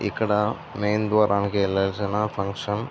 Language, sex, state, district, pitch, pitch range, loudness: Telugu, male, Andhra Pradesh, Visakhapatnam, 105 Hz, 100-105 Hz, -24 LUFS